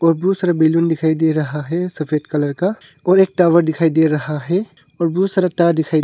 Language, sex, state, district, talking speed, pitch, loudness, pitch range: Hindi, male, Arunachal Pradesh, Longding, 230 wpm, 165 Hz, -17 LUFS, 155-180 Hz